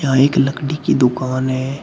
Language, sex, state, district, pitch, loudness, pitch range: Hindi, male, Uttar Pradesh, Shamli, 135 Hz, -17 LUFS, 130-140 Hz